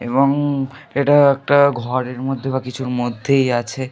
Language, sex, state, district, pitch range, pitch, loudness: Bengali, male, West Bengal, North 24 Parganas, 125-140 Hz, 135 Hz, -18 LUFS